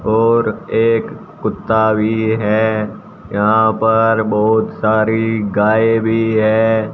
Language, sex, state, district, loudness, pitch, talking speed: Hindi, male, Haryana, Jhajjar, -15 LUFS, 110 Hz, 105 wpm